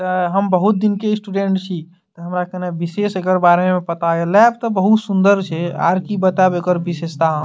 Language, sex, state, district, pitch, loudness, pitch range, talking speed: Maithili, male, Bihar, Madhepura, 185 Hz, -17 LUFS, 175-195 Hz, 215 wpm